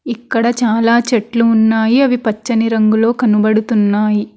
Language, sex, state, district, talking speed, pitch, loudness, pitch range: Telugu, female, Telangana, Hyderabad, 110 wpm, 225 Hz, -13 LUFS, 215-235 Hz